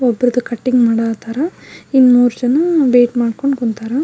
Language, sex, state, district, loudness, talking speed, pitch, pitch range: Kannada, female, Karnataka, Belgaum, -14 LUFS, 150 wpm, 245 Hz, 235-265 Hz